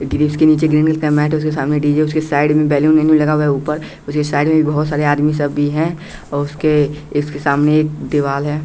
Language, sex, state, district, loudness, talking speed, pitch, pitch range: Hindi, male, Bihar, West Champaran, -15 LUFS, 215 wpm, 150 Hz, 145-155 Hz